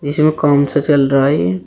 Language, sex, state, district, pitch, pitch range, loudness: Hindi, male, Uttar Pradesh, Shamli, 145 Hz, 135-145 Hz, -13 LUFS